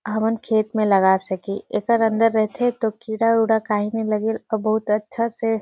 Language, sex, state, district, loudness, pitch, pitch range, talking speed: Surgujia, female, Chhattisgarh, Sarguja, -21 LUFS, 220 Hz, 215-225 Hz, 190 wpm